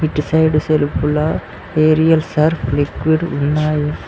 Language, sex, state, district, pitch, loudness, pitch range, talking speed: Telugu, male, Telangana, Mahabubabad, 155 Hz, -16 LUFS, 150-155 Hz, 105 wpm